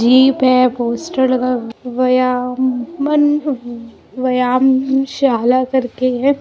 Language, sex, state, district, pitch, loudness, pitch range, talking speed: Hindi, female, Bihar, Muzaffarpur, 255 Hz, -15 LUFS, 250-265 Hz, 95 wpm